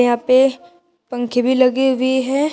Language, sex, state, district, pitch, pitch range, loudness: Hindi, female, Uttar Pradesh, Shamli, 260 Hz, 250-275 Hz, -16 LUFS